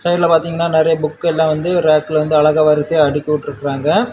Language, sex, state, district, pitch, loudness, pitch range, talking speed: Tamil, male, Tamil Nadu, Kanyakumari, 155 Hz, -15 LUFS, 150-165 Hz, 160 wpm